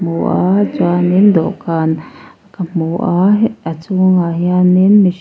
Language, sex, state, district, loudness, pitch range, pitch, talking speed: Mizo, female, Mizoram, Aizawl, -13 LUFS, 170-195 Hz, 180 Hz, 160 wpm